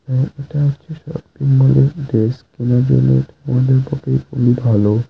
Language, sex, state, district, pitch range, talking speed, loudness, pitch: Bengali, male, West Bengal, Malda, 120-140 Hz, 130 wpm, -16 LUFS, 130 Hz